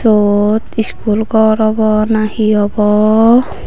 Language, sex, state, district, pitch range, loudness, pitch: Chakma, female, Tripura, Unakoti, 210-220 Hz, -12 LUFS, 215 Hz